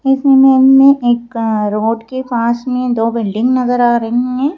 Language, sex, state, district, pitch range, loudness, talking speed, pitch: Hindi, female, Madhya Pradesh, Bhopal, 230-260 Hz, -12 LUFS, 185 wpm, 245 Hz